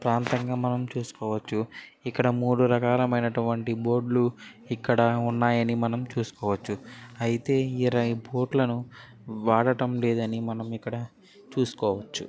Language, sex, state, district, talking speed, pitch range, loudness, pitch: Telugu, male, Andhra Pradesh, Srikakulam, 100 wpm, 115-125 Hz, -27 LUFS, 120 Hz